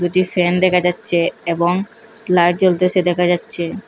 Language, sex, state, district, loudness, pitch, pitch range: Bengali, female, Assam, Hailakandi, -16 LUFS, 180 Hz, 175-185 Hz